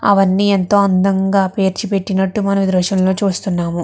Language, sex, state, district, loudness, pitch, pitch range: Telugu, female, Andhra Pradesh, Chittoor, -15 LUFS, 195 Hz, 190-200 Hz